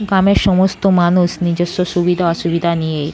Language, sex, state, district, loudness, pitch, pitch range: Bengali, female, West Bengal, North 24 Parganas, -15 LUFS, 175 Hz, 170-190 Hz